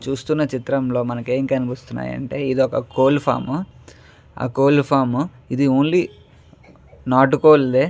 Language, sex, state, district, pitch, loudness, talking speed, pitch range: Telugu, male, Andhra Pradesh, Chittoor, 135 Hz, -19 LUFS, 105 wpm, 125-140 Hz